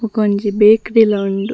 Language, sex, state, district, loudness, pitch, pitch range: Tulu, female, Karnataka, Dakshina Kannada, -14 LUFS, 210 Hz, 205-225 Hz